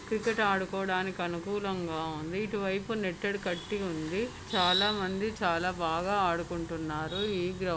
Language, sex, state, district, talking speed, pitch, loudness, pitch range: Telugu, male, Andhra Pradesh, Krishna, 130 wpm, 185 Hz, -31 LUFS, 170-205 Hz